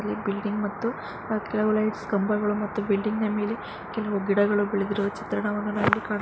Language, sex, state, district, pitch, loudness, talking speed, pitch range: Kannada, female, Karnataka, Mysore, 210 Hz, -26 LUFS, 165 wpm, 205-215 Hz